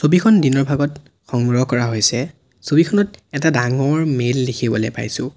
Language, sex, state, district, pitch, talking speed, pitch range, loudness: Assamese, male, Assam, Sonitpur, 135 Hz, 135 wpm, 120-150 Hz, -17 LUFS